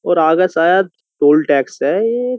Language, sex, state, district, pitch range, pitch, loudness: Hindi, male, Uttar Pradesh, Jyotiba Phule Nagar, 150-190 Hz, 170 Hz, -14 LUFS